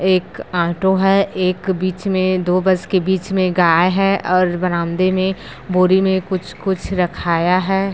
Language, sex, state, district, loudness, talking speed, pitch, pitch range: Hindi, female, Chhattisgarh, Bilaspur, -17 LUFS, 165 wpm, 185 Hz, 180-190 Hz